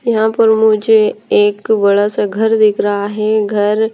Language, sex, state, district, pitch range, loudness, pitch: Hindi, female, Himachal Pradesh, Shimla, 205-220 Hz, -13 LUFS, 215 Hz